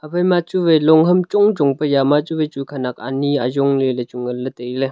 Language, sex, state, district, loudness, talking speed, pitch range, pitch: Wancho, male, Arunachal Pradesh, Longding, -17 LUFS, 185 wpm, 130-160 Hz, 140 Hz